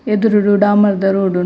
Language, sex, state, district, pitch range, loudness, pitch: Tulu, female, Karnataka, Dakshina Kannada, 195-210 Hz, -13 LUFS, 205 Hz